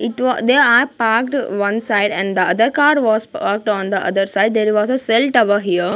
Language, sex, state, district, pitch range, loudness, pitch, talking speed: English, female, Punjab, Kapurthala, 200-245 Hz, -16 LUFS, 220 Hz, 230 wpm